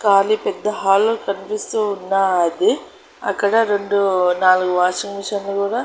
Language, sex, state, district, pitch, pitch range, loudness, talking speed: Telugu, female, Andhra Pradesh, Annamaya, 200 Hz, 190-210 Hz, -18 LUFS, 125 wpm